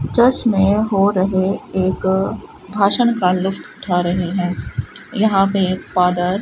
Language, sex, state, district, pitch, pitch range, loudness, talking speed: Hindi, female, Rajasthan, Bikaner, 190 Hz, 185-205 Hz, -17 LUFS, 150 wpm